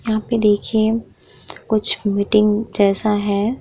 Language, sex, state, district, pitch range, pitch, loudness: Hindi, female, Bihar, Vaishali, 205-220 Hz, 210 Hz, -17 LUFS